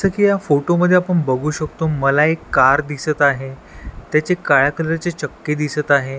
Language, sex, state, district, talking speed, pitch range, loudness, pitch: Marathi, male, Maharashtra, Washim, 185 wpm, 140-170 Hz, -17 LUFS, 150 Hz